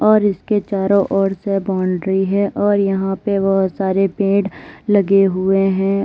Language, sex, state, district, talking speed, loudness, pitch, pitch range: Hindi, female, Uttar Pradesh, Lalitpur, 160 wpm, -17 LUFS, 195 Hz, 195-200 Hz